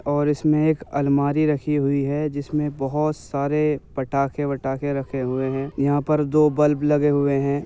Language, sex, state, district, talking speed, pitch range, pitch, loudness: Hindi, male, Uttar Pradesh, Jyotiba Phule Nagar, 170 wpm, 140-150 Hz, 145 Hz, -22 LUFS